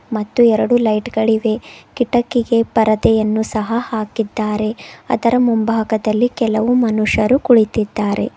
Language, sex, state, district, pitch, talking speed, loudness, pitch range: Kannada, female, Karnataka, Bidar, 225 Hz, 95 wpm, -16 LUFS, 215-235 Hz